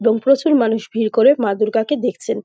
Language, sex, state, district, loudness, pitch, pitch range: Bengali, female, West Bengal, Jhargram, -16 LUFS, 225 Hz, 220-275 Hz